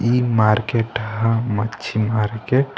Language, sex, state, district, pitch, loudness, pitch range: Bhojpuri, male, Bihar, East Champaran, 115 Hz, -20 LUFS, 110-120 Hz